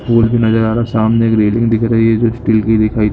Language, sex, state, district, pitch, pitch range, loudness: Hindi, male, Jharkhand, Sahebganj, 115 Hz, 110-115 Hz, -13 LUFS